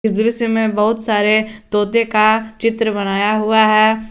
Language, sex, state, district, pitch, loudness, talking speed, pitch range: Hindi, male, Jharkhand, Garhwa, 220 Hz, -15 LUFS, 160 wpm, 215-225 Hz